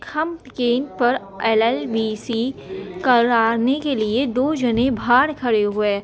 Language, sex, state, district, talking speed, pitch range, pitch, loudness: Hindi, female, Bihar, Muzaffarpur, 130 wpm, 225-265 Hz, 240 Hz, -19 LUFS